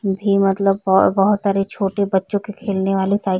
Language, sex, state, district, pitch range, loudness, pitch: Hindi, female, Uttar Pradesh, Varanasi, 195-200 Hz, -18 LUFS, 195 Hz